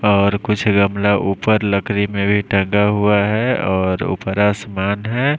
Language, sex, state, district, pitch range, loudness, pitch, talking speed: Hindi, male, Maharashtra, Mumbai Suburban, 100-105 Hz, -17 LUFS, 100 Hz, 155 wpm